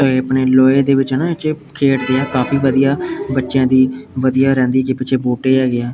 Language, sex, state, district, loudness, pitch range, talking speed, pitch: Punjabi, male, Punjab, Pathankot, -15 LUFS, 130-135 Hz, 200 wpm, 130 Hz